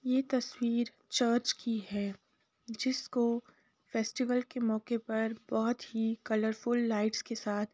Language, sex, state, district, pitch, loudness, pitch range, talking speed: Hindi, female, Uttar Pradesh, Jalaun, 230 Hz, -33 LUFS, 220-245 Hz, 130 wpm